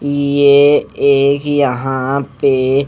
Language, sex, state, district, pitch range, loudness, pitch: Hindi, male, Punjab, Fazilka, 135-145 Hz, -13 LUFS, 140 Hz